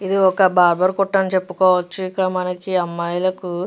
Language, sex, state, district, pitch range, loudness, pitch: Telugu, female, Andhra Pradesh, Chittoor, 180-190 Hz, -18 LUFS, 185 Hz